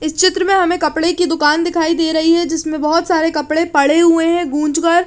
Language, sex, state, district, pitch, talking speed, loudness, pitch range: Hindi, female, Chandigarh, Chandigarh, 325 Hz, 260 wpm, -14 LUFS, 310-340 Hz